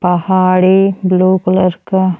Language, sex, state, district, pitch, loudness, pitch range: Bhojpuri, female, Uttar Pradesh, Ghazipur, 185 Hz, -12 LUFS, 185-190 Hz